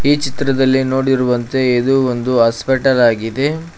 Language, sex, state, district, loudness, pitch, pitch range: Kannada, male, Karnataka, Koppal, -15 LUFS, 130 Hz, 125-135 Hz